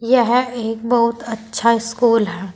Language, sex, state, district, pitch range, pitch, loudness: Hindi, female, Uttar Pradesh, Saharanpur, 225-240 Hz, 230 Hz, -17 LUFS